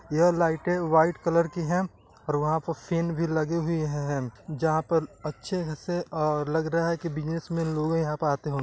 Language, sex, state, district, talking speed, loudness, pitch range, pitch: Hindi, male, Bihar, East Champaran, 190 wpm, -27 LUFS, 155-170 Hz, 160 Hz